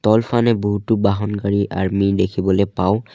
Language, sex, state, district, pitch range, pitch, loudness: Assamese, male, Assam, Sonitpur, 95-110 Hz, 100 Hz, -18 LUFS